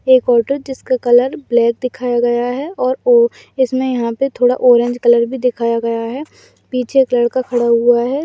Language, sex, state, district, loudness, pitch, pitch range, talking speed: Hindi, female, Rajasthan, Churu, -15 LUFS, 250 Hz, 240-265 Hz, 190 wpm